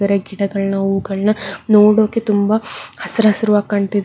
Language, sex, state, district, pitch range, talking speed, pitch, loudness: Kannada, female, Karnataka, Bangalore, 200-215 Hz, 105 wpm, 205 Hz, -16 LUFS